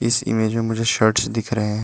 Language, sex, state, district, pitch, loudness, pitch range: Hindi, male, Arunachal Pradesh, Lower Dibang Valley, 115 Hz, -20 LUFS, 110-115 Hz